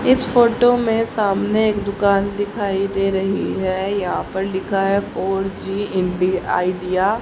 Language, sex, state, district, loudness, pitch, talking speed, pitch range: Hindi, female, Haryana, Jhajjar, -19 LUFS, 195 Hz, 150 wpm, 190-210 Hz